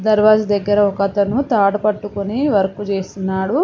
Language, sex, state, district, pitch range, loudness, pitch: Telugu, female, Telangana, Mahabubabad, 200-215 Hz, -17 LUFS, 205 Hz